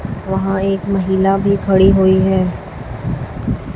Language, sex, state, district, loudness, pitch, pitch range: Hindi, female, Chhattisgarh, Raipur, -15 LUFS, 190 Hz, 190-195 Hz